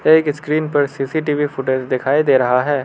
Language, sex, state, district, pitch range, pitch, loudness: Hindi, male, Arunachal Pradesh, Lower Dibang Valley, 130-150 Hz, 145 Hz, -17 LUFS